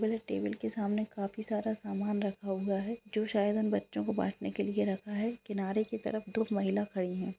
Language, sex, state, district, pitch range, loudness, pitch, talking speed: Hindi, female, Bihar, Kishanganj, 195-215 Hz, -34 LUFS, 210 Hz, 220 wpm